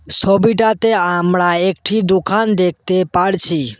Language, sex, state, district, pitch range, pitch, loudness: Bengali, male, West Bengal, Cooch Behar, 175-210 Hz, 185 Hz, -14 LUFS